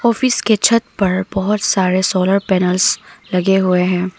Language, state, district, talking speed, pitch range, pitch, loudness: Hindi, Arunachal Pradesh, Papum Pare, 155 wpm, 185-210 Hz, 190 Hz, -15 LUFS